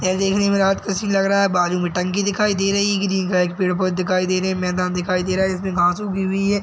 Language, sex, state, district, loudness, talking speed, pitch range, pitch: Hindi, male, Chhattisgarh, Bilaspur, -19 LUFS, 280 wpm, 185-195 Hz, 190 Hz